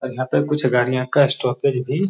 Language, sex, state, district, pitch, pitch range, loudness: Hindi, male, Bihar, Gaya, 130 Hz, 125-140 Hz, -18 LUFS